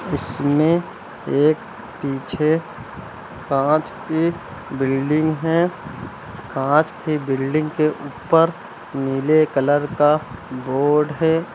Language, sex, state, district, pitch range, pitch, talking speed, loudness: Hindi, male, Uttar Pradesh, Lucknow, 135-160 Hz, 150 Hz, 90 wpm, -20 LUFS